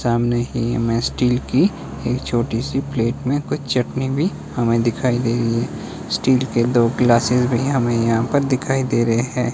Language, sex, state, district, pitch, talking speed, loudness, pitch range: Hindi, male, Himachal Pradesh, Shimla, 120 Hz, 180 wpm, -19 LUFS, 120-130 Hz